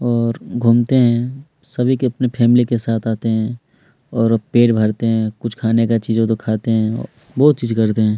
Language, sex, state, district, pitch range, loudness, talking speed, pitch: Hindi, male, Chhattisgarh, Kabirdham, 115-120 Hz, -17 LUFS, 205 wpm, 115 Hz